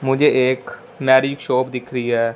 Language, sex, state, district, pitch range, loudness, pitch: Hindi, male, Punjab, Fazilka, 125-135 Hz, -18 LUFS, 130 Hz